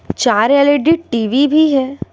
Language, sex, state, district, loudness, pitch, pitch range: Hindi, female, Bihar, Patna, -13 LUFS, 280 Hz, 265-310 Hz